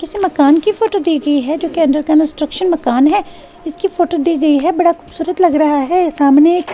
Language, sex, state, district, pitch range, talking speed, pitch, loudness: Hindi, female, Bihar, West Champaran, 300-355 Hz, 220 wpm, 330 Hz, -13 LUFS